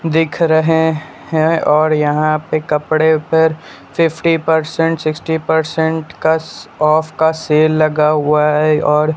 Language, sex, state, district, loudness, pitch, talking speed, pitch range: Hindi, male, Bihar, Patna, -14 LUFS, 155 Hz, 130 wpm, 155-160 Hz